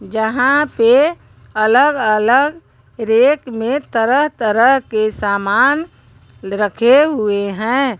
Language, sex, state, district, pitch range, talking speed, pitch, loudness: Hindi, female, Jharkhand, Garhwa, 215-275 Hz, 80 wpm, 235 Hz, -14 LUFS